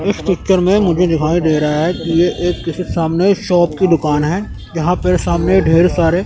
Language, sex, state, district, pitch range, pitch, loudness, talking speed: Hindi, male, Chandigarh, Chandigarh, 165-180 Hz, 175 Hz, -14 LUFS, 210 wpm